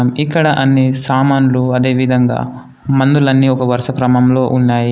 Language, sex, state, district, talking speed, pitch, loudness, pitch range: Telugu, male, Telangana, Komaram Bheem, 120 wpm, 130 Hz, -13 LUFS, 125-135 Hz